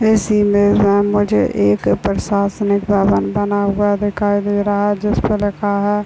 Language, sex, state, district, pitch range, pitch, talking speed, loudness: Hindi, female, Chhattisgarh, Bilaspur, 200-205 Hz, 205 Hz, 180 wpm, -16 LUFS